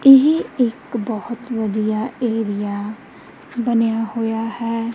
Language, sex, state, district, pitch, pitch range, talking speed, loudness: Punjabi, female, Punjab, Kapurthala, 230 Hz, 220-245 Hz, 95 wpm, -20 LUFS